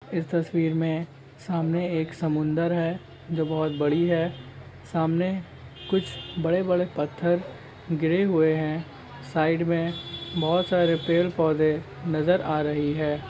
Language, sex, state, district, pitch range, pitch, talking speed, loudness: Hindi, male, Maharashtra, Nagpur, 150-170 Hz, 160 Hz, 135 wpm, -25 LUFS